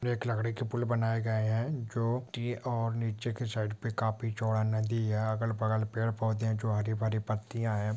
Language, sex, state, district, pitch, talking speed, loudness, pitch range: Hindi, male, West Bengal, Jalpaiguri, 115 Hz, 205 wpm, -32 LUFS, 110-115 Hz